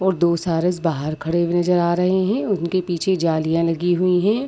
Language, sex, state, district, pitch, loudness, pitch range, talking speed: Hindi, female, Chhattisgarh, Bilaspur, 175 Hz, -20 LUFS, 165-185 Hz, 200 wpm